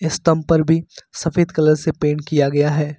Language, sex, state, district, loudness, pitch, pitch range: Hindi, male, Uttar Pradesh, Lucknow, -18 LUFS, 155 Hz, 150-165 Hz